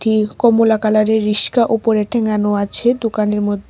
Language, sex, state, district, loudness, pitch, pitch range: Bengali, female, Tripura, West Tripura, -15 LUFS, 215 Hz, 210-225 Hz